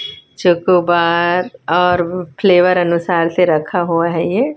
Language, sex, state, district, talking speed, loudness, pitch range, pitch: Hindi, female, Chhattisgarh, Raipur, 120 wpm, -14 LUFS, 170-180 Hz, 175 Hz